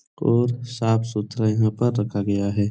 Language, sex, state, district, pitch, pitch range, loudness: Hindi, male, Bihar, Supaul, 110 Hz, 105-120 Hz, -22 LUFS